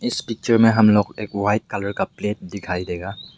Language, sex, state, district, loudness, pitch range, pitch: Hindi, male, Meghalaya, West Garo Hills, -20 LUFS, 100-110 Hz, 105 Hz